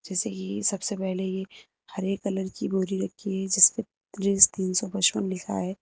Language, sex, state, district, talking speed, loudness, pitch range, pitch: Hindi, female, Uttar Pradesh, Lucknow, 195 wpm, -25 LUFS, 190-200 Hz, 190 Hz